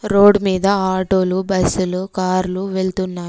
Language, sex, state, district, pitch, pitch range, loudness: Telugu, female, Telangana, Komaram Bheem, 190 Hz, 185-195 Hz, -17 LUFS